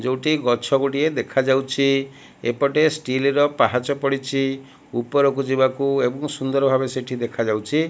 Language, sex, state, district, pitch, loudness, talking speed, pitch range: Odia, male, Odisha, Malkangiri, 135 Hz, -21 LUFS, 120 wpm, 130-140 Hz